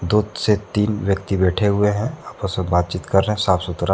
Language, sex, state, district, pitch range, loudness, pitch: Hindi, male, Jharkhand, Deoghar, 95-105 Hz, -20 LUFS, 100 Hz